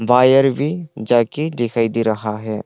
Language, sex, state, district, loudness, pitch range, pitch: Hindi, male, Arunachal Pradesh, Longding, -17 LUFS, 110-135 Hz, 120 Hz